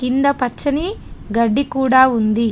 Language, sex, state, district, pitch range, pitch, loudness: Telugu, female, Telangana, Adilabad, 230-280 Hz, 260 Hz, -17 LUFS